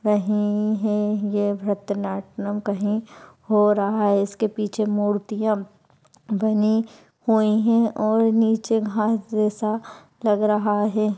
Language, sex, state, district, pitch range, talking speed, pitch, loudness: Hindi, male, Bihar, Madhepura, 205-220 Hz, 115 wpm, 210 Hz, -22 LUFS